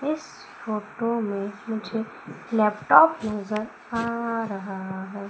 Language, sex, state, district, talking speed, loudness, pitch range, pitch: Hindi, female, Madhya Pradesh, Umaria, 100 wpm, -25 LUFS, 200-230 Hz, 215 Hz